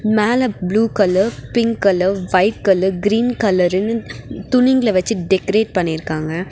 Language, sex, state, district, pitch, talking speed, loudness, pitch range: Tamil, female, Tamil Nadu, Nilgiris, 200 Hz, 130 wpm, -17 LUFS, 185-225 Hz